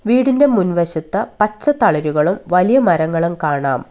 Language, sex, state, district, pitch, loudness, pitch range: Malayalam, female, Kerala, Kollam, 180 Hz, -16 LUFS, 160-230 Hz